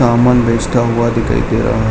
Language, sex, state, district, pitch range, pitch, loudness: Hindi, male, Uttar Pradesh, Hamirpur, 115-120 Hz, 115 Hz, -13 LUFS